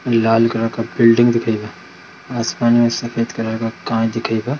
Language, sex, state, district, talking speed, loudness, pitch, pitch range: Hindi, male, Bihar, Darbhanga, 185 wpm, -17 LUFS, 115 Hz, 115-120 Hz